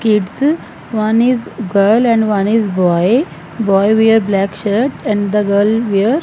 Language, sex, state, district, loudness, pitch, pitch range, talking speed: English, female, Punjab, Fazilka, -14 LUFS, 215 Hz, 200-230 Hz, 155 wpm